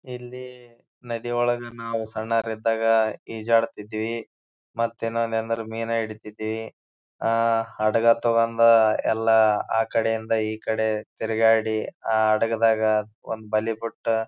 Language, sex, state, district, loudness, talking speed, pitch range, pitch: Kannada, male, Karnataka, Bijapur, -24 LUFS, 100 wpm, 110-115 Hz, 115 Hz